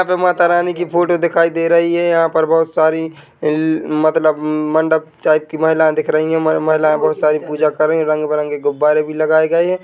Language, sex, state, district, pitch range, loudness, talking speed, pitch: Hindi, male, Chhattisgarh, Bilaspur, 155-165 Hz, -15 LUFS, 205 wpm, 155 Hz